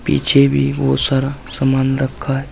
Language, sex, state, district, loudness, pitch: Hindi, male, Uttar Pradesh, Saharanpur, -16 LUFS, 135 Hz